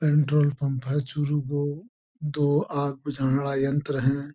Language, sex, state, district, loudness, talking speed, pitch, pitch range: Marwari, male, Rajasthan, Churu, -26 LUFS, 150 wpm, 145 Hz, 140-150 Hz